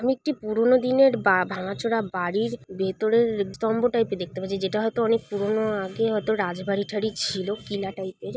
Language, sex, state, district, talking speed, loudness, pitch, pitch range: Bengali, female, West Bengal, Paschim Medinipur, 160 wpm, -25 LUFS, 210 Hz, 190-230 Hz